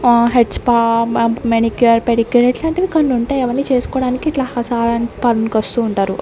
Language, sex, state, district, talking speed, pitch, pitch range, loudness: Telugu, female, Andhra Pradesh, Sri Satya Sai, 165 wpm, 240 Hz, 230-255 Hz, -15 LUFS